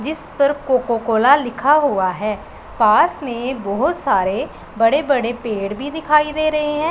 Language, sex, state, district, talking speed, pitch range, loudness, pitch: Hindi, female, Punjab, Pathankot, 165 wpm, 225-300 Hz, -18 LUFS, 265 Hz